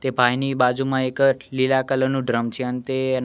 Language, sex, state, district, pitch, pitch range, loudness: Gujarati, male, Gujarat, Gandhinagar, 130 Hz, 125-135 Hz, -21 LUFS